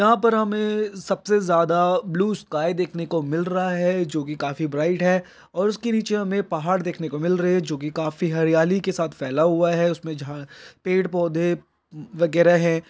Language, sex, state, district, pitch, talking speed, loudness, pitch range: Hindi, male, Bihar, Jahanabad, 175 Hz, 190 wpm, -22 LUFS, 160-190 Hz